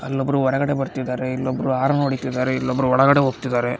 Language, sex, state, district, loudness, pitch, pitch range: Kannada, male, Karnataka, Raichur, -20 LUFS, 130 Hz, 130-135 Hz